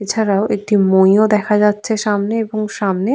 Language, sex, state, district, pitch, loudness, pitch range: Bengali, female, West Bengal, Purulia, 210 Hz, -15 LUFS, 200-215 Hz